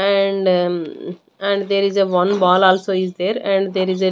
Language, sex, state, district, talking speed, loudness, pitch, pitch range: English, female, Haryana, Rohtak, 220 wpm, -17 LUFS, 190 Hz, 180-195 Hz